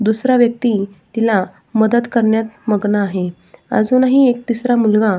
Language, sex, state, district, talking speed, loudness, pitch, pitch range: Marathi, female, Maharashtra, Sindhudurg, 125 wpm, -16 LUFS, 220 Hz, 205-240 Hz